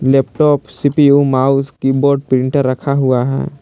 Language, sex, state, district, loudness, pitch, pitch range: Hindi, male, Jharkhand, Palamu, -14 LUFS, 135 Hz, 130-140 Hz